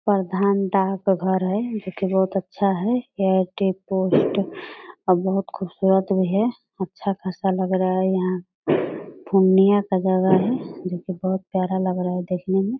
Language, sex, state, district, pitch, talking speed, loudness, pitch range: Hindi, female, Bihar, Purnia, 190 Hz, 165 wpm, -22 LUFS, 185-200 Hz